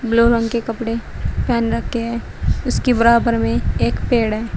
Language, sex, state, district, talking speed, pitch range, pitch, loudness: Hindi, female, Uttar Pradesh, Shamli, 170 wpm, 220-235 Hz, 230 Hz, -18 LUFS